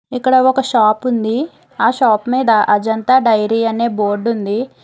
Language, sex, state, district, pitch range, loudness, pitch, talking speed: Telugu, female, Telangana, Hyderabad, 220-255 Hz, -14 LUFS, 230 Hz, 150 wpm